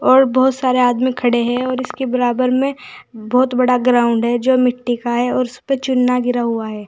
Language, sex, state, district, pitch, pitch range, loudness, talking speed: Hindi, female, Uttar Pradesh, Saharanpur, 250 Hz, 240-255 Hz, -16 LUFS, 210 wpm